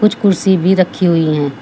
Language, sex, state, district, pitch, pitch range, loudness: Hindi, female, Uttar Pradesh, Shamli, 185 Hz, 165-195 Hz, -13 LUFS